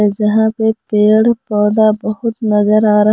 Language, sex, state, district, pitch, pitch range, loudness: Hindi, female, Jharkhand, Palamu, 215 Hz, 210-220 Hz, -13 LUFS